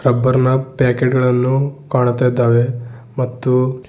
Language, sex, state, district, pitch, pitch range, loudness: Kannada, male, Karnataka, Bidar, 125 Hz, 125-130 Hz, -16 LUFS